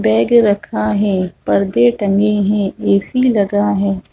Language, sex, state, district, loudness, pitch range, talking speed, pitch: Hindi, female, Chhattisgarh, Rajnandgaon, -15 LUFS, 150-205 Hz, 130 wpm, 200 Hz